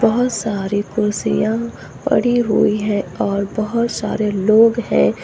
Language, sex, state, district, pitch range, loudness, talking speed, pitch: Hindi, female, Uttar Pradesh, Lucknow, 200-230 Hz, -17 LUFS, 125 wpm, 215 Hz